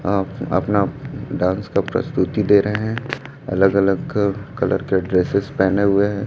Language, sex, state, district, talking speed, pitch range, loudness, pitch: Hindi, male, Chhattisgarh, Raipur, 155 wpm, 95-105 Hz, -19 LUFS, 100 Hz